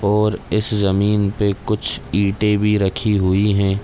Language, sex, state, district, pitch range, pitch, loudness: Hindi, male, Chhattisgarh, Raigarh, 100-105 Hz, 105 Hz, -18 LUFS